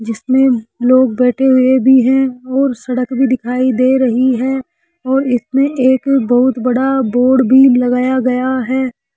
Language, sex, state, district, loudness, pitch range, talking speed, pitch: Hindi, male, Rajasthan, Jaipur, -13 LUFS, 250-265 Hz, 150 wpm, 260 Hz